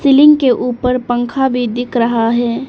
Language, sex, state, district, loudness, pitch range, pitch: Hindi, female, Arunachal Pradesh, Papum Pare, -13 LUFS, 240-265 Hz, 245 Hz